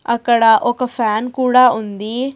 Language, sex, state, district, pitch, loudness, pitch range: Telugu, female, Telangana, Hyderabad, 240 Hz, -15 LUFS, 220-250 Hz